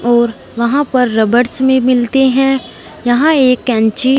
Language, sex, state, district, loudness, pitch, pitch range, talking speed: Hindi, female, Punjab, Fazilka, -12 LUFS, 250 Hz, 240-265 Hz, 145 wpm